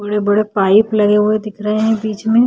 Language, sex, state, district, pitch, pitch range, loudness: Hindi, female, Bihar, Vaishali, 210 Hz, 210-215 Hz, -15 LUFS